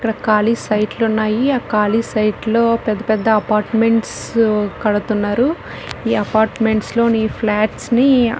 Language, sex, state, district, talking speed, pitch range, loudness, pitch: Telugu, female, Telangana, Nalgonda, 135 wpm, 215-230 Hz, -16 LUFS, 220 Hz